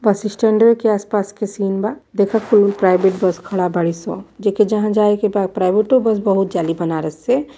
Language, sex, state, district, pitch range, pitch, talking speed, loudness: Bhojpuri, female, Uttar Pradesh, Varanasi, 190-215 Hz, 205 Hz, 215 wpm, -17 LUFS